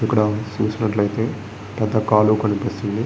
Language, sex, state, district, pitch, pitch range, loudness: Telugu, male, Andhra Pradesh, Srikakulam, 105 Hz, 105-110 Hz, -20 LUFS